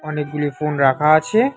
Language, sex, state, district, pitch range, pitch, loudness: Bengali, male, West Bengal, Alipurduar, 145-155 Hz, 150 Hz, -17 LUFS